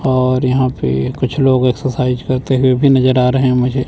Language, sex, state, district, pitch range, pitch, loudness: Hindi, male, Chandigarh, Chandigarh, 125-130 Hz, 130 Hz, -14 LUFS